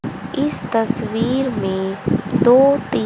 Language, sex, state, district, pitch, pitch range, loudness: Hindi, female, Haryana, Charkhi Dadri, 225 Hz, 195-260 Hz, -17 LUFS